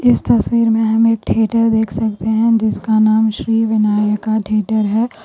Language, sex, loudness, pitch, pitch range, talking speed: Urdu, female, -15 LUFS, 220 Hz, 215-225 Hz, 160 wpm